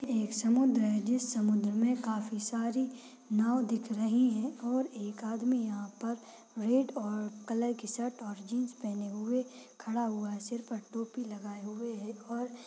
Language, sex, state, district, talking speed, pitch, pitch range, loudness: Hindi, female, Maharashtra, Solapur, 170 wpm, 230 Hz, 215-245 Hz, -33 LUFS